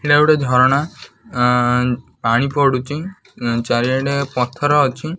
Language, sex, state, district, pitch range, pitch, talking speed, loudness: Odia, male, Odisha, Khordha, 125-145 Hz, 130 Hz, 125 wpm, -17 LUFS